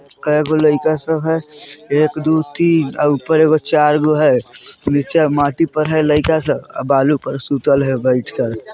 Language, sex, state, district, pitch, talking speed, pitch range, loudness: Bajjika, male, Bihar, Vaishali, 150 Hz, 170 wpm, 145-155 Hz, -15 LUFS